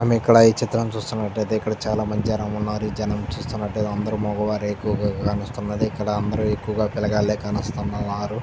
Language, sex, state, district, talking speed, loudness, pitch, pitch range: Telugu, male, Andhra Pradesh, Krishna, 165 wpm, -23 LUFS, 105 Hz, 105-110 Hz